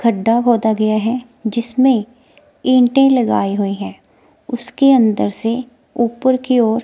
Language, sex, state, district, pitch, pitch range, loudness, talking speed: Hindi, female, Himachal Pradesh, Shimla, 240 Hz, 225-255 Hz, -15 LUFS, 130 wpm